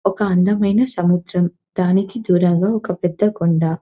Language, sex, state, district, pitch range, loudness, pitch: Telugu, female, Telangana, Nalgonda, 175-205 Hz, -18 LUFS, 180 Hz